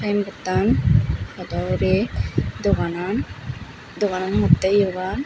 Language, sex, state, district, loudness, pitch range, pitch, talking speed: Chakma, female, Tripura, Unakoti, -21 LUFS, 185-205 Hz, 195 Hz, 90 wpm